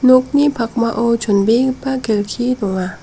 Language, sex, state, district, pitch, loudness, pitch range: Garo, female, Meghalaya, South Garo Hills, 235 Hz, -16 LUFS, 215-255 Hz